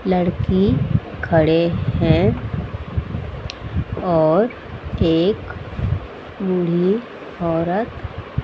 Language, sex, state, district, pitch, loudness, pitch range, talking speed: Hindi, female, Odisha, Sambalpur, 165 Hz, -20 LUFS, 110-185 Hz, 50 wpm